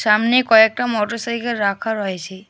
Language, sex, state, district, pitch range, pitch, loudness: Bengali, male, West Bengal, Alipurduar, 205-235 Hz, 220 Hz, -17 LUFS